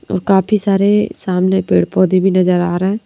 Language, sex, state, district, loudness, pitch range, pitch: Hindi, female, Madhya Pradesh, Bhopal, -14 LUFS, 180-195 Hz, 185 Hz